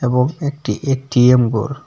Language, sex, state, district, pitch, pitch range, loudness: Bengali, male, Assam, Hailakandi, 125 Hz, 125-140 Hz, -16 LUFS